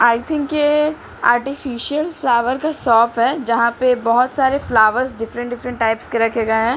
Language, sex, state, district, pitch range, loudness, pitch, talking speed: Hindi, female, Bihar, Patna, 230-280 Hz, -17 LUFS, 245 Hz, 175 wpm